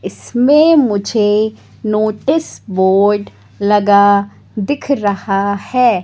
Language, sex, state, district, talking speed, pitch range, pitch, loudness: Hindi, female, Madhya Pradesh, Katni, 80 wpm, 200-245 Hz, 210 Hz, -14 LUFS